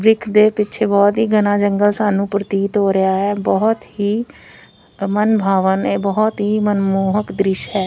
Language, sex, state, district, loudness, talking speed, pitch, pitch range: Punjabi, female, Punjab, Fazilka, -16 LUFS, 145 wpm, 205 Hz, 195-210 Hz